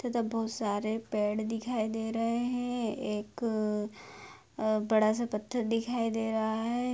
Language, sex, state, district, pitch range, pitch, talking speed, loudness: Hindi, female, Jharkhand, Sahebganj, 215-235 Hz, 225 Hz, 145 wpm, -32 LUFS